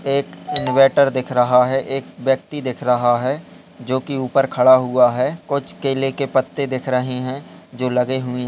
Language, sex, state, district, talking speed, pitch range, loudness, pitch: Hindi, male, Bihar, Jahanabad, 185 wpm, 125-135 Hz, -18 LUFS, 130 Hz